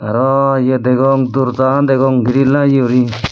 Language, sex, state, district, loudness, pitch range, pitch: Chakma, male, Tripura, Dhalai, -13 LUFS, 125-135 Hz, 130 Hz